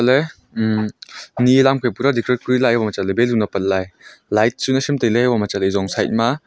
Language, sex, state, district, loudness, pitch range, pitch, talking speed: Wancho, male, Arunachal Pradesh, Longding, -18 LUFS, 105-130 Hz, 120 Hz, 205 wpm